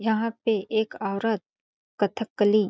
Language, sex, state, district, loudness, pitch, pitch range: Hindi, female, Chhattisgarh, Balrampur, -26 LUFS, 220 Hz, 205-225 Hz